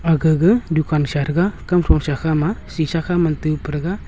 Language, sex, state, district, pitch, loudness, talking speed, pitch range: Wancho, male, Arunachal Pradesh, Longding, 160 Hz, -18 LUFS, 190 wpm, 150-175 Hz